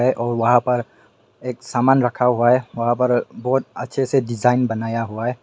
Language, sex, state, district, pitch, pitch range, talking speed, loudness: Hindi, male, Meghalaya, West Garo Hills, 125 Hz, 120-125 Hz, 190 wpm, -19 LUFS